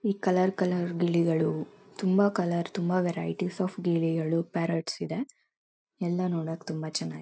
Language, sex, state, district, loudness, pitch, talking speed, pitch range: Kannada, female, Karnataka, Mysore, -29 LUFS, 175 Hz, 140 wpm, 165-185 Hz